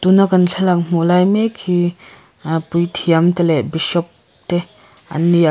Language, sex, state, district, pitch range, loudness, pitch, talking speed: Mizo, female, Mizoram, Aizawl, 165-180 Hz, -16 LUFS, 175 Hz, 175 wpm